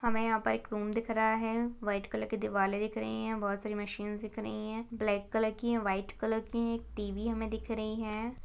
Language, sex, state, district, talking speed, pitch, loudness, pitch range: Hindi, female, Chhattisgarh, Balrampur, 235 wpm, 220 Hz, -34 LUFS, 205-225 Hz